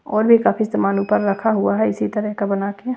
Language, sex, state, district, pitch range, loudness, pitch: Hindi, female, Bihar, West Champaran, 195-220 Hz, -18 LUFS, 210 Hz